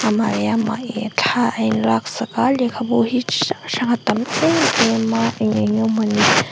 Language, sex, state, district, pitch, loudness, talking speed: Mizo, female, Mizoram, Aizawl, 205 Hz, -18 LUFS, 220 wpm